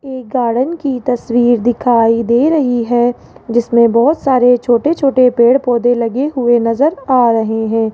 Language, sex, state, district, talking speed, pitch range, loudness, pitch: Hindi, female, Rajasthan, Jaipur, 160 wpm, 235-260 Hz, -13 LUFS, 245 Hz